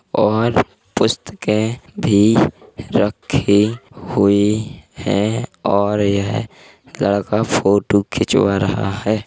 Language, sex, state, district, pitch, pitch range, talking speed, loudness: Hindi, male, Uttar Pradesh, Hamirpur, 105 Hz, 100-110 Hz, 85 wpm, -17 LUFS